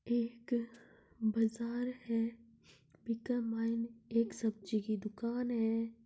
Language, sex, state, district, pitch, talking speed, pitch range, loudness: Marwari, male, Rajasthan, Nagaur, 230 Hz, 110 wpm, 225-235 Hz, -37 LUFS